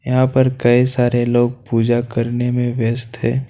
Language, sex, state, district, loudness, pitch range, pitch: Hindi, male, Jharkhand, Ranchi, -17 LUFS, 120-125 Hz, 120 Hz